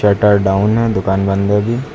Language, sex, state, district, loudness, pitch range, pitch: Hindi, male, Uttar Pradesh, Lucknow, -14 LUFS, 95-110 Hz, 105 Hz